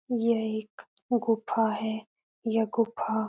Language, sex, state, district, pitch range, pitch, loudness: Hindi, female, Uttar Pradesh, Etah, 220-230 Hz, 220 Hz, -29 LUFS